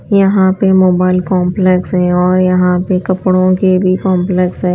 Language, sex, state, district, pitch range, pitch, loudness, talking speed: Hindi, female, Chhattisgarh, Raipur, 180-185 Hz, 185 Hz, -11 LUFS, 165 wpm